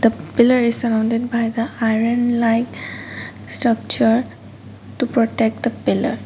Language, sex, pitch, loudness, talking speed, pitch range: English, female, 230 Hz, -18 LUFS, 115 wpm, 225-240 Hz